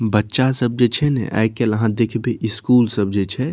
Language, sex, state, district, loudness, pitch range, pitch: Maithili, male, Bihar, Saharsa, -18 LUFS, 110-125 Hz, 115 Hz